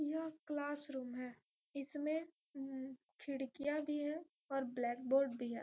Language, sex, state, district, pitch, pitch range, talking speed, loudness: Hindi, female, Bihar, Gopalganj, 275 Hz, 260-300 Hz, 130 wpm, -42 LUFS